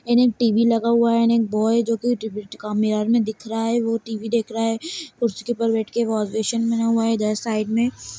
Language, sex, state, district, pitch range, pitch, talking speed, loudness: Hindi, female, Chhattisgarh, Sarguja, 220-235 Hz, 230 Hz, 280 wpm, -21 LUFS